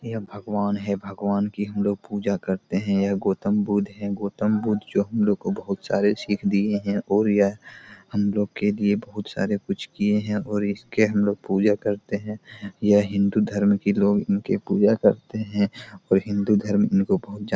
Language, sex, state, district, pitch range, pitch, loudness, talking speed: Hindi, male, Bihar, Araria, 100-105 Hz, 105 Hz, -23 LUFS, 200 wpm